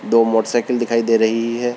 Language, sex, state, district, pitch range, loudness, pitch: Hindi, male, Rajasthan, Churu, 115-120 Hz, -17 LUFS, 115 Hz